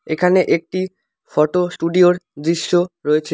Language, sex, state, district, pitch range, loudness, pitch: Bengali, male, West Bengal, Alipurduar, 160-180 Hz, -17 LUFS, 175 Hz